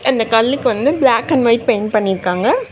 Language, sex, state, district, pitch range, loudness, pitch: Tamil, female, Tamil Nadu, Chennai, 215-275 Hz, -15 LUFS, 235 Hz